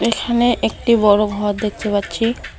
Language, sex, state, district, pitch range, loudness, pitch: Bengali, female, West Bengal, Alipurduar, 205-235 Hz, -17 LUFS, 210 Hz